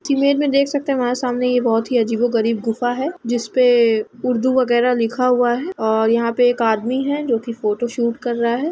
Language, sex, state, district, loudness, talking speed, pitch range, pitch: Hindi, female, Uttar Pradesh, Etah, -18 LUFS, 215 wpm, 230-255 Hz, 245 Hz